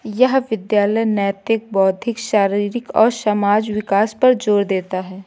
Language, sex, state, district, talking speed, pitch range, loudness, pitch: Hindi, female, Uttar Pradesh, Lucknow, 135 wpm, 200-225 Hz, -17 LUFS, 210 Hz